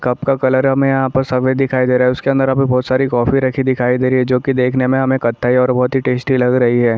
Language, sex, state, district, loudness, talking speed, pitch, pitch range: Hindi, male, Chhattisgarh, Sarguja, -15 LUFS, 290 wpm, 130 Hz, 125-135 Hz